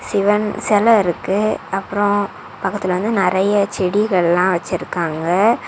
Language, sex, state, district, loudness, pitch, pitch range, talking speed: Tamil, female, Tamil Nadu, Kanyakumari, -17 LUFS, 195 Hz, 180-205 Hz, 95 wpm